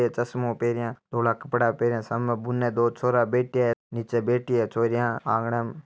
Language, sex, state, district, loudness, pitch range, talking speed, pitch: Marwari, male, Rajasthan, Nagaur, -25 LUFS, 115-120 Hz, 175 wpm, 120 Hz